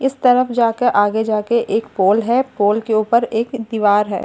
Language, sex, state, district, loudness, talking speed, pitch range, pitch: Hindi, female, Bihar, Katihar, -16 LUFS, 195 wpm, 210-245 Hz, 225 Hz